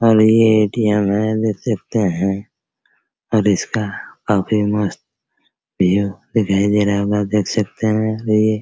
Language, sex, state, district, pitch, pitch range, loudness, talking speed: Hindi, male, Bihar, Araria, 105 Hz, 100-110 Hz, -17 LUFS, 145 wpm